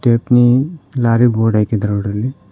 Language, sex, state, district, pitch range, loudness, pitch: Kannada, male, Karnataka, Koppal, 110-125 Hz, -15 LUFS, 120 Hz